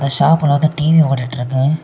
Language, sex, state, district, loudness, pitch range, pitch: Tamil, male, Tamil Nadu, Kanyakumari, -14 LUFS, 135-155 Hz, 145 Hz